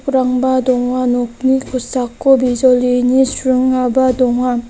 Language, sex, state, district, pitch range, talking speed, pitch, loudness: Garo, female, Meghalaya, North Garo Hills, 250-260 Hz, 75 wpm, 255 Hz, -14 LUFS